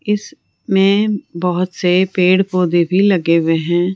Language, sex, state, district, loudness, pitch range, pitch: Hindi, female, Rajasthan, Jaipur, -15 LUFS, 175-195 Hz, 185 Hz